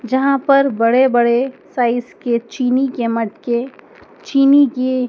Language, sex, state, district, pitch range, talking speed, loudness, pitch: Hindi, female, Madhya Pradesh, Dhar, 240-270 Hz, 140 wpm, -16 LUFS, 255 Hz